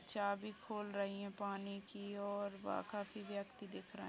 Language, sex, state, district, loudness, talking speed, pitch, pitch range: Hindi, female, Uttar Pradesh, Budaun, -45 LUFS, 190 wpm, 200 Hz, 200-205 Hz